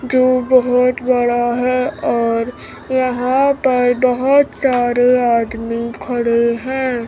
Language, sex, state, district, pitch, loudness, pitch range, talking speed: Hindi, female, Bihar, Kaimur, 250 Hz, -15 LUFS, 240-255 Hz, 100 wpm